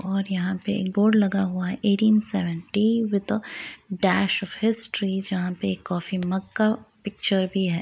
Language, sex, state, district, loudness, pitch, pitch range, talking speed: Hindi, female, Bihar, East Champaran, -24 LUFS, 195 Hz, 185-210 Hz, 185 wpm